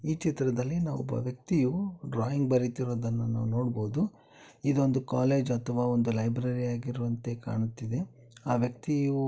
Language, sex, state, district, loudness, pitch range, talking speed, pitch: Kannada, male, Karnataka, Bellary, -30 LUFS, 120-140 Hz, 110 wpm, 125 Hz